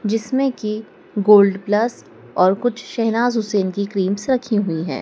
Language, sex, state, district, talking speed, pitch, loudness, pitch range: Hindi, female, Madhya Pradesh, Dhar, 155 wpm, 210 Hz, -19 LUFS, 200-230 Hz